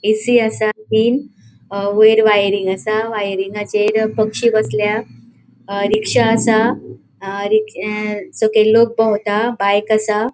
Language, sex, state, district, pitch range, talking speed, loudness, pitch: Konkani, female, Goa, North and South Goa, 200-220 Hz, 105 wpm, -16 LUFS, 215 Hz